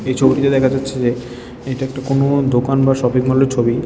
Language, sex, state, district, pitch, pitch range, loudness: Bengali, male, Tripura, West Tripura, 130 Hz, 125-135 Hz, -16 LUFS